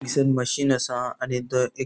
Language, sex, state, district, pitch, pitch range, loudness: Konkani, male, Goa, North and South Goa, 125 Hz, 125-135 Hz, -24 LUFS